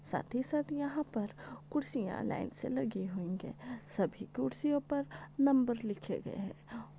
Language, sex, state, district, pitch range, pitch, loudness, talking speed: Hindi, female, Maharashtra, Pune, 210-290 Hz, 260 Hz, -36 LUFS, 155 wpm